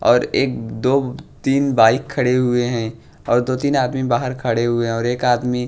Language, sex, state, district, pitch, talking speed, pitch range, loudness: Hindi, male, Bihar, West Champaran, 125 Hz, 200 wpm, 120-130 Hz, -18 LUFS